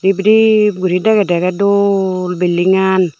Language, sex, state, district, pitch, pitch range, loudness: Chakma, female, Tripura, Dhalai, 190 Hz, 180-200 Hz, -13 LUFS